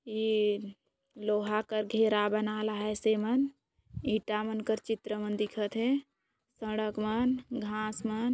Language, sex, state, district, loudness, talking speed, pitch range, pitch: Sadri, female, Chhattisgarh, Jashpur, -32 LUFS, 130 wpm, 210-225 Hz, 215 Hz